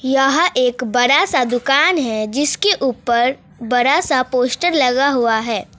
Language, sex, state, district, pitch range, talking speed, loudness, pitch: Hindi, female, West Bengal, Alipurduar, 245-280 Hz, 145 wpm, -16 LUFS, 255 Hz